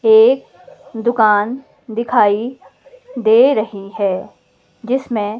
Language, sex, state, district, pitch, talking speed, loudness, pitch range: Hindi, female, Himachal Pradesh, Shimla, 235 Hz, 80 wpm, -16 LUFS, 210-265 Hz